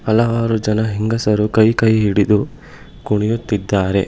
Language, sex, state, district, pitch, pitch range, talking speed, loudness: Kannada, male, Karnataka, Bangalore, 110 Hz, 105-115 Hz, 105 wpm, -16 LUFS